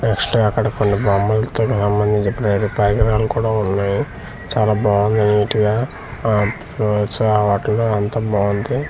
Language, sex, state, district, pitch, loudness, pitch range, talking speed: Telugu, male, Andhra Pradesh, Manyam, 105 Hz, -18 LUFS, 105-110 Hz, 100 wpm